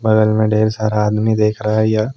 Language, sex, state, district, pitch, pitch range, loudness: Hindi, male, Jharkhand, Deoghar, 110 Hz, 105-110 Hz, -16 LUFS